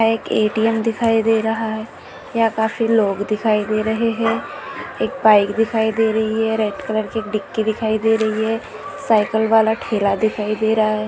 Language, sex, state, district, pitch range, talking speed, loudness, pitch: Hindi, female, Maharashtra, Aurangabad, 215-225 Hz, 190 wpm, -18 LUFS, 220 Hz